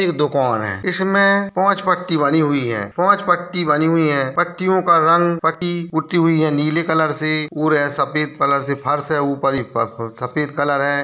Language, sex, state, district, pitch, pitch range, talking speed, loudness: Hindi, male, Bihar, Jamui, 155 Hz, 140-175 Hz, 185 wpm, -17 LUFS